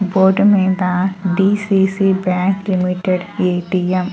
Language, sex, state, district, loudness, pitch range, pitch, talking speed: Telugu, female, Andhra Pradesh, Chittoor, -16 LUFS, 185-195 Hz, 190 Hz, 100 wpm